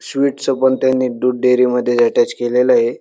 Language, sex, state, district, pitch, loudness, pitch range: Marathi, male, Maharashtra, Dhule, 125 Hz, -15 LUFS, 120-130 Hz